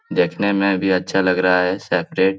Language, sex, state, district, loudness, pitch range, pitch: Hindi, male, Bihar, Lakhisarai, -18 LUFS, 90-95 Hz, 95 Hz